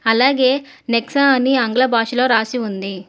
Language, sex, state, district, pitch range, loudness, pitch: Telugu, female, Telangana, Hyderabad, 225-265 Hz, -16 LUFS, 250 Hz